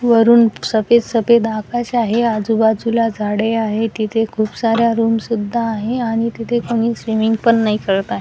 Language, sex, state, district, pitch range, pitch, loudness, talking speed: Marathi, female, Maharashtra, Washim, 220-235 Hz, 225 Hz, -16 LUFS, 160 wpm